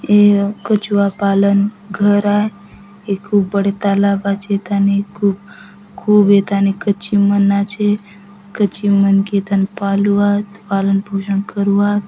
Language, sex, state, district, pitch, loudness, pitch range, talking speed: Halbi, female, Chhattisgarh, Bastar, 200 Hz, -15 LUFS, 200-205 Hz, 130 wpm